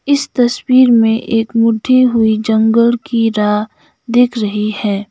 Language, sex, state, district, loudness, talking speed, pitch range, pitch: Hindi, female, Sikkim, Gangtok, -13 LUFS, 140 wpm, 220-245 Hz, 230 Hz